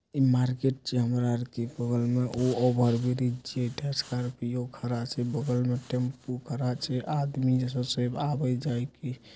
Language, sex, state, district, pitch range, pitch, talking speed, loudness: Angika, male, Bihar, Supaul, 125-130 Hz, 125 Hz, 115 wpm, -29 LUFS